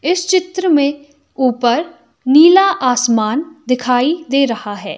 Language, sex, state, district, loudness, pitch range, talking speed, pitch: Hindi, female, Himachal Pradesh, Shimla, -14 LUFS, 250-335 Hz, 120 wpm, 280 Hz